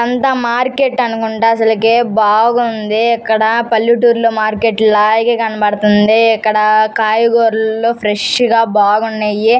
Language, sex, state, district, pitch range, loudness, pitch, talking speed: Telugu, female, Andhra Pradesh, Guntur, 215-235 Hz, -12 LUFS, 225 Hz, 100 wpm